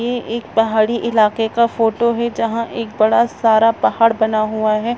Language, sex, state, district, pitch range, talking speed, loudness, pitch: Hindi, female, Chhattisgarh, Raigarh, 220-235 Hz, 180 wpm, -16 LUFS, 230 Hz